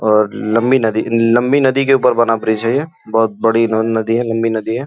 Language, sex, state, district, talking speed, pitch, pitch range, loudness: Hindi, male, Uttar Pradesh, Gorakhpur, 220 wpm, 115 Hz, 110-120 Hz, -14 LUFS